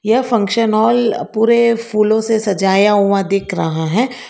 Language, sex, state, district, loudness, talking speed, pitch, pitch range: Hindi, female, Karnataka, Bangalore, -14 LUFS, 155 wpm, 220 Hz, 200-230 Hz